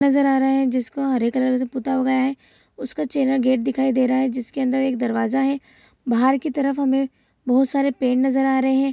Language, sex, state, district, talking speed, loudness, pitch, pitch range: Hindi, female, Bihar, Saharsa, 235 wpm, -20 LUFS, 265 Hz, 255-270 Hz